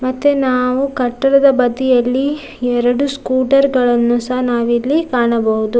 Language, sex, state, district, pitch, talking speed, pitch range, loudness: Kannada, female, Karnataka, Dakshina Kannada, 255 Hz, 85 wpm, 240-275 Hz, -15 LUFS